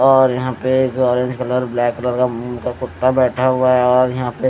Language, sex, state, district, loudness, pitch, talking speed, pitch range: Hindi, male, Odisha, Nuapada, -17 LUFS, 125 Hz, 255 wpm, 125-130 Hz